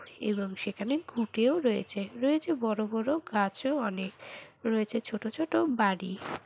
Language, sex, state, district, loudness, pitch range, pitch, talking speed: Bengali, female, West Bengal, Purulia, -31 LUFS, 205-285 Hz, 225 Hz, 120 wpm